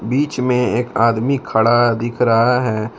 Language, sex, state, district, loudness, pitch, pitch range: Hindi, male, Jharkhand, Palamu, -16 LUFS, 120 Hz, 115-125 Hz